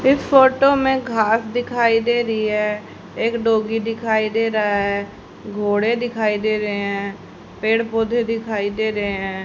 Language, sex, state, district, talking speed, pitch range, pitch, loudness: Hindi, female, Haryana, Charkhi Dadri, 160 wpm, 210-230 Hz, 220 Hz, -19 LUFS